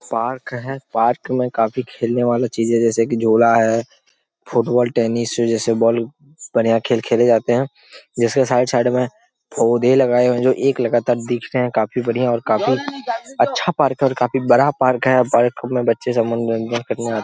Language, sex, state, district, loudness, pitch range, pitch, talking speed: Hindi, male, Jharkhand, Jamtara, -18 LUFS, 115-125 Hz, 120 Hz, 180 wpm